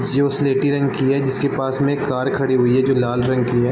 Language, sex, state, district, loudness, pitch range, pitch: Hindi, male, Bihar, Sitamarhi, -18 LUFS, 130-140 Hz, 135 Hz